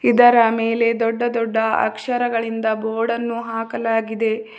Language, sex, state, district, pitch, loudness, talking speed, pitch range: Kannada, female, Karnataka, Bidar, 230 Hz, -19 LUFS, 90 wpm, 225-235 Hz